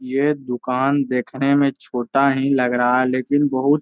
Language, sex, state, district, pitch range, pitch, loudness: Hindi, male, Bihar, Gaya, 125-140 Hz, 135 Hz, -19 LUFS